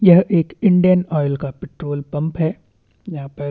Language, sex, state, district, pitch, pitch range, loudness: Hindi, male, Chhattisgarh, Bastar, 160 Hz, 145-180 Hz, -18 LUFS